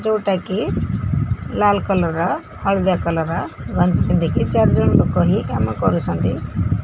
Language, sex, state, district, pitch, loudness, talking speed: Odia, female, Odisha, Khordha, 165 Hz, -19 LUFS, 125 wpm